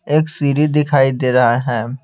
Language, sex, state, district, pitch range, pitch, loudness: Hindi, male, Bihar, Patna, 125-150 Hz, 135 Hz, -15 LUFS